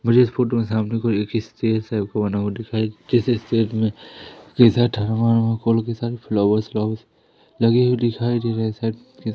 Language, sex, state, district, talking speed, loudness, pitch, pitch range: Hindi, male, Madhya Pradesh, Umaria, 185 wpm, -20 LUFS, 115 Hz, 110-120 Hz